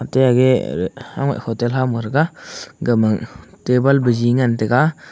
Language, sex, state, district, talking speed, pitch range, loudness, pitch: Wancho, male, Arunachal Pradesh, Longding, 130 wpm, 120-140 Hz, -18 LUFS, 125 Hz